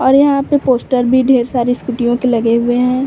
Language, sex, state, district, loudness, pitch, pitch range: Hindi, female, Uttar Pradesh, Varanasi, -13 LUFS, 250 Hz, 240-265 Hz